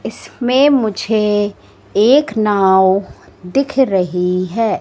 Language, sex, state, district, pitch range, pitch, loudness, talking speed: Hindi, female, Madhya Pradesh, Katni, 190-250 Hz, 210 Hz, -14 LUFS, 85 wpm